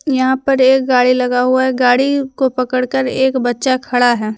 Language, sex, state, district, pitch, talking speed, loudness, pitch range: Hindi, female, Jharkhand, Deoghar, 255 Hz, 190 wpm, -14 LUFS, 250-265 Hz